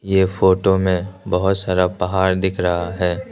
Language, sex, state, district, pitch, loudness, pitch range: Hindi, male, Arunachal Pradesh, Lower Dibang Valley, 95 Hz, -18 LUFS, 90-95 Hz